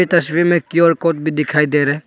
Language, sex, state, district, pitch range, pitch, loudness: Hindi, male, Arunachal Pradesh, Papum Pare, 150-170 Hz, 160 Hz, -15 LUFS